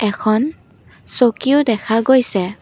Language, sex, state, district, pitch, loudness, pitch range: Assamese, female, Assam, Kamrup Metropolitan, 225 Hz, -16 LUFS, 215-260 Hz